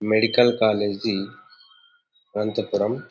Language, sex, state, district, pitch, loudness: Telugu, male, Andhra Pradesh, Anantapur, 120 Hz, -22 LUFS